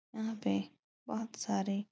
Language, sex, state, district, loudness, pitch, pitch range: Hindi, female, Uttar Pradesh, Etah, -37 LUFS, 205 Hz, 195-220 Hz